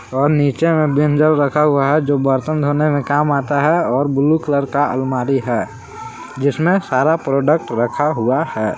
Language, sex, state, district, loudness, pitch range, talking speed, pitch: Hindi, male, Jharkhand, Palamu, -16 LUFS, 135-155 Hz, 185 wpm, 145 Hz